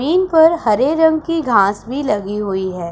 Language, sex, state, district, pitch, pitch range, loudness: Hindi, female, Punjab, Pathankot, 275 Hz, 200-320 Hz, -15 LUFS